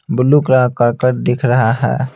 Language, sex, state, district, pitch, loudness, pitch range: Hindi, male, Bihar, Patna, 125 Hz, -14 LUFS, 125-130 Hz